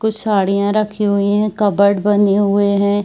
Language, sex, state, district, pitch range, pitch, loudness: Hindi, female, Chhattisgarh, Bilaspur, 200-210 Hz, 205 Hz, -15 LUFS